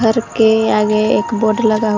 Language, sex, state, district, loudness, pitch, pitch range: Hindi, female, Jharkhand, Garhwa, -14 LUFS, 220 Hz, 215-225 Hz